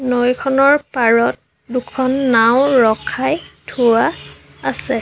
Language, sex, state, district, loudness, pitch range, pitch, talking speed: Assamese, female, Assam, Sonitpur, -15 LUFS, 235-265 Hz, 250 Hz, 85 wpm